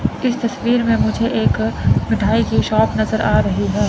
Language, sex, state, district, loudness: Hindi, male, Chandigarh, Chandigarh, -17 LUFS